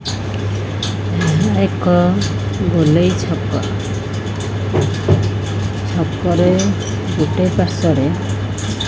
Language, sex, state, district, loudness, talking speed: Odia, female, Odisha, Khordha, -17 LUFS, 45 wpm